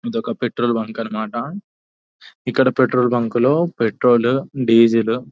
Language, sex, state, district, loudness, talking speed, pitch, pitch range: Telugu, male, Telangana, Nalgonda, -18 LUFS, 145 wpm, 120 Hz, 115-125 Hz